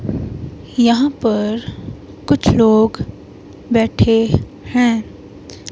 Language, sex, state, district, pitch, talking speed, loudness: Hindi, female, Himachal Pradesh, Shimla, 180 Hz, 65 wpm, -16 LUFS